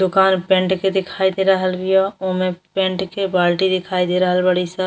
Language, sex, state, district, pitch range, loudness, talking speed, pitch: Bhojpuri, female, Uttar Pradesh, Deoria, 185-190 Hz, -18 LUFS, 195 wpm, 185 Hz